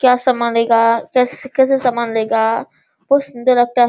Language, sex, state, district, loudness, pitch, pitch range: Hindi, female, Bihar, Sitamarhi, -15 LUFS, 245 Hz, 230-260 Hz